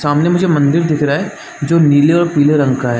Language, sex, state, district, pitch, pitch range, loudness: Hindi, male, Chhattisgarh, Bastar, 150 Hz, 145-170 Hz, -13 LUFS